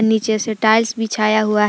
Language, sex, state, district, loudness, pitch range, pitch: Hindi, female, Jharkhand, Palamu, -17 LUFS, 215-220 Hz, 220 Hz